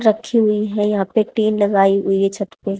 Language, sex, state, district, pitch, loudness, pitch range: Hindi, female, Haryana, Rohtak, 210 Hz, -17 LUFS, 195-215 Hz